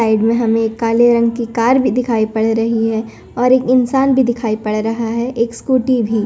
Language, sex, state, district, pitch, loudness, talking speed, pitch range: Hindi, female, Punjab, Kapurthala, 230 Hz, -15 LUFS, 220 wpm, 225-250 Hz